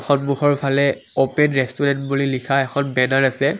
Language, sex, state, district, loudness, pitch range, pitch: Assamese, male, Assam, Kamrup Metropolitan, -19 LUFS, 135-140 Hz, 140 Hz